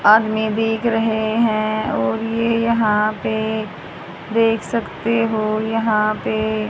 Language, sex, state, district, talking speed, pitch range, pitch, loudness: Hindi, male, Haryana, Jhajjar, 115 wpm, 215-225 Hz, 220 Hz, -19 LUFS